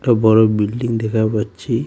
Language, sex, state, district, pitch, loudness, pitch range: Bengali, male, West Bengal, Alipurduar, 110 Hz, -16 LUFS, 110-115 Hz